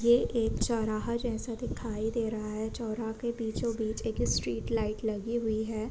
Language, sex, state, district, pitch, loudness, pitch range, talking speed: Hindi, female, Uttar Pradesh, Gorakhpur, 225 Hz, -32 LUFS, 220-235 Hz, 185 wpm